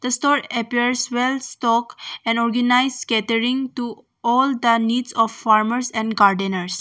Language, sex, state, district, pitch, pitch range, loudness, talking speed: English, female, Arunachal Pradesh, Longding, 240 Hz, 225-255 Hz, -19 LUFS, 140 wpm